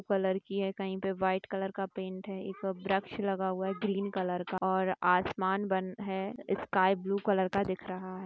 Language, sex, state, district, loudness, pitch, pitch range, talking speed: Hindi, female, Bihar, Kishanganj, -33 LUFS, 190 Hz, 185-195 Hz, 210 wpm